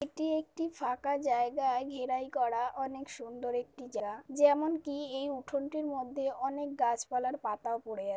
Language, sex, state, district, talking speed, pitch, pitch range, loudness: Bengali, female, West Bengal, Paschim Medinipur, 155 wpm, 265 Hz, 245-285 Hz, -34 LUFS